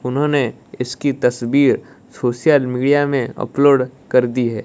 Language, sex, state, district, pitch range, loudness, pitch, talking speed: Hindi, female, Odisha, Malkangiri, 125-140 Hz, -17 LUFS, 130 Hz, 130 wpm